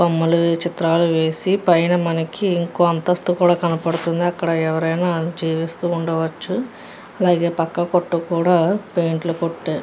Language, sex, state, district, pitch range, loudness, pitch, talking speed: Telugu, female, Andhra Pradesh, Guntur, 165-175 Hz, -19 LUFS, 170 Hz, 120 wpm